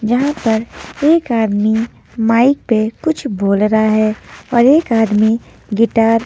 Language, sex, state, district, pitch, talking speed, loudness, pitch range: Hindi, female, Maharashtra, Mumbai Suburban, 225 Hz, 145 wpm, -14 LUFS, 215-245 Hz